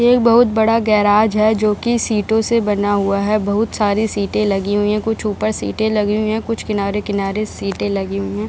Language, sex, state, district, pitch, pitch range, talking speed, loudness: Hindi, female, Bihar, Jahanabad, 210 Hz, 205-220 Hz, 210 wpm, -17 LUFS